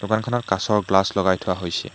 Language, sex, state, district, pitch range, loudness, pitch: Assamese, male, Assam, Hailakandi, 95-105 Hz, -21 LUFS, 95 Hz